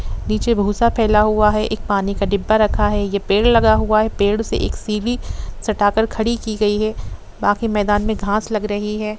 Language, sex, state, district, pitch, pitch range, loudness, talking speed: Hindi, female, Jharkhand, Jamtara, 215 Hz, 205-220 Hz, -18 LUFS, 215 wpm